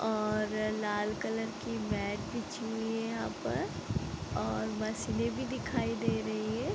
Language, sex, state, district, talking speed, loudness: Hindi, female, Bihar, East Champaran, 160 wpm, -35 LUFS